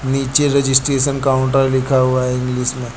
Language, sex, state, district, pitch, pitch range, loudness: Hindi, male, Uttar Pradesh, Lucknow, 130 Hz, 130-135 Hz, -16 LUFS